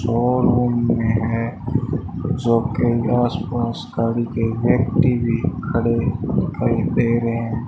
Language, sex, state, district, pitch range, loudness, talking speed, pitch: Hindi, male, Rajasthan, Bikaner, 115-120 Hz, -20 LUFS, 135 wpm, 115 Hz